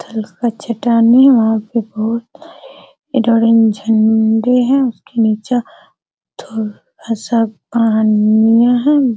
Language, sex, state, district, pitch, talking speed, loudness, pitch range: Hindi, female, Bihar, Araria, 230 Hz, 110 wpm, -13 LUFS, 220-245 Hz